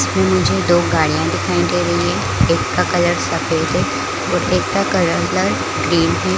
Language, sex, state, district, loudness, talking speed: Hindi, female, Chhattisgarh, Balrampur, -16 LUFS, 180 wpm